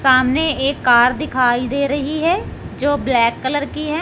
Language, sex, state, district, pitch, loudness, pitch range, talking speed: Hindi, male, Punjab, Fazilka, 280 Hz, -17 LUFS, 255-300 Hz, 180 wpm